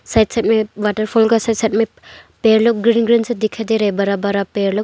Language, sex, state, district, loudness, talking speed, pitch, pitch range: Hindi, female, Arunachal Pradesh, Longding, -16 LUFS, 250 wpm, 220 Hz, 210-230 Hz